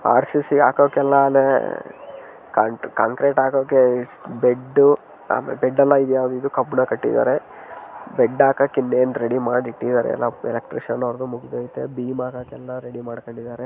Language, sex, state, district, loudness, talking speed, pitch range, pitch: Kannada, male, Karnataka, Shimoga, -19 LUFS, 130 wpm, 125-140 Hz, 130 Hz